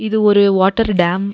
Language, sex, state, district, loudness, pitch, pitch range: Tamil, female, Tamil Nadu, Nilgiris, -14 LUFS, 200 Hz, 190-215 Hz